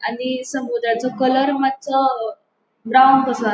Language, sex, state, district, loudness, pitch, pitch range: Konkani, female, Goa, North and South Goa, -18 LUFS, 260 Hz, 230-270 Hz